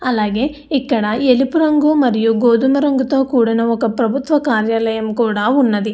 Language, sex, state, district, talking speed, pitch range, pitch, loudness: Telugu, female, Andhra Pradesh, Anantapur, 130 wpm, 225-275 Hz, 245 Hz, -15 LUFS